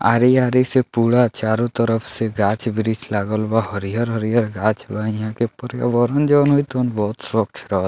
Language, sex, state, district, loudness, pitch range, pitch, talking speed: Bhojpuri, male, Bihar, Muzaffarpur, -19 LUFS, 110-120 Hz, 115 Hz, 160 wpm